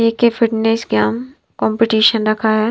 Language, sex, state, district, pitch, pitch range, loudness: Hindi, female, Himachal Pradesh, Shimla, 225 Hz, 220-230 Hz, -15 LUFS